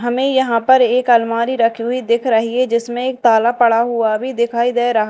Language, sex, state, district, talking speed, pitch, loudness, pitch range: Hindi, female, Madhya Pradesh, Dhar, 225 wpm, 240 Hz, -15 LUFS, 230-250 Hz